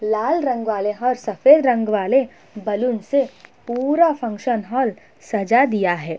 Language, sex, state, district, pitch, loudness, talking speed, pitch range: Hindi, female, Uttar Pradesh, Budaun, 235 Hz, -19 LUFS, 145 wpm, 215-265 Hz